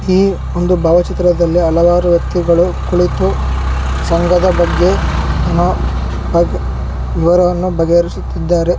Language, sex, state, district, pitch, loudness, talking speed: Kannada, male, Karnataka, Shimoga, 170 Hz, -14 LUFS, 70 wpm